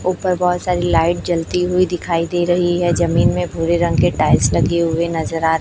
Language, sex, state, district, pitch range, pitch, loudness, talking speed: Hindi, female, Chhattisgarh, Raipur, 165-180 Hz, 175 Hz, -17 LUFS, 225 wpm